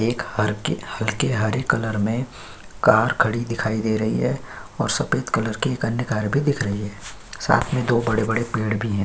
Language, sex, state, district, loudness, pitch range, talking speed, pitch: Hindi, male, Uttar Pradesh, Jyotiba Phule Nagar, -22 LUFS, 110-120 Hz, 200 wpm, 110 Hz